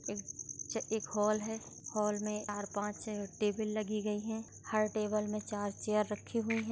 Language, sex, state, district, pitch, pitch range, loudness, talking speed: Hindi, female, Maharashtra, Dhule, 210 Hz, 205-215 Hz, -36 LUFS, 185 wpm